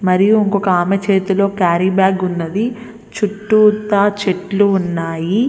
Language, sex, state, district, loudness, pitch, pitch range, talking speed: Telugu, female, Andhra Pradesh, Visakhapatnam, -15 LUFS, 200 Hz, 185-210 Hz, 110 wpm